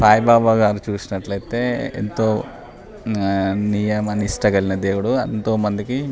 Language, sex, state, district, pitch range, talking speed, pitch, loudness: Telugu, male, Telangana, Nalgonda, 100-110 Hz, 135 wpm, 105 Hz, -19 LUFS